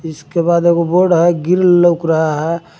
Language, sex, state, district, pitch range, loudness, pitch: Hindi, male, Jharkhand, Garhwa, 165-175 Hz, -13 LUFS, 170 Hz